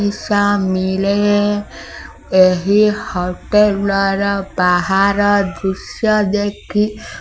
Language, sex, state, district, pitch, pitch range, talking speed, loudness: Odia, female, Odisha, Sambalpur, 200 Hz, 190-205 Hz, 60 wpm, -16 LUFS